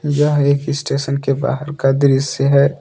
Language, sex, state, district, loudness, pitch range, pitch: Hindi, male, Jharkhand, Deoghar, -16 LUFS, 140-145 Hz, 140 Hz